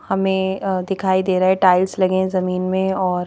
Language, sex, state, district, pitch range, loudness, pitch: Hindi, female, Madhya Pradesh, Bhopal, 185-190 Hz, -18 LUFS, 190 Hz